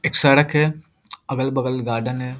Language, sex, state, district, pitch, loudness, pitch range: Hindi, male, Bihar, Jahanabad, 135 Hz, -19 LUFS, 125-150 Hz